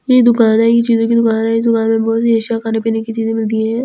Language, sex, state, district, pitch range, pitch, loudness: Hindi, female, Delhi, New Delhi, 225-230 Hz, 225 Hz, -14 LUFS